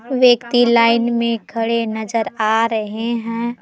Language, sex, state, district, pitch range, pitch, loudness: Hindi, female, Jharkhand, Palamu, 225-235 Hz, 230 Hz, -17 LUFS